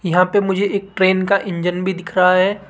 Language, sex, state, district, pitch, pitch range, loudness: Hindi, female, Rajasthan, Jaipur, 190 Hz, 180-200 Hz, -17 LUFS